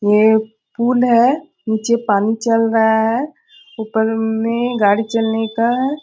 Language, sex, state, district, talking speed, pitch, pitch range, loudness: Hindi, female, Bihar, Bhagalpur, 150 wpm, 225 Hz, 220-240 Hz, -16 LUFS